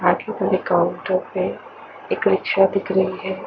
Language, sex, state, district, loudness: Hindi, female, Chandigarh, Chandigarh, -21 LUFS